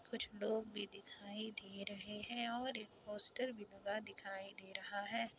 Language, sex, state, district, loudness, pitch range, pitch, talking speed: Hindi, female, Bihar, Kishanganj, -46 LUFS, 200-225 Hz, 210 Hz, 180 wpm